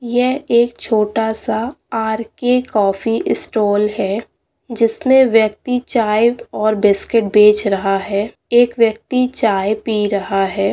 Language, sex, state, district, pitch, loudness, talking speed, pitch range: Hindi, female, Andhra Pradesh, Chittoor, 220 Hz, -16 LUFS, 115 wpm, 210-240 Hz